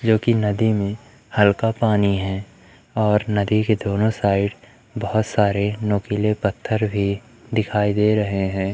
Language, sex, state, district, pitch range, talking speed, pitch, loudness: Hindi, male, Madhya Pradesh, Umaria, 100-110 Hz, 135 wpm, 105 Hz, -21 LUFS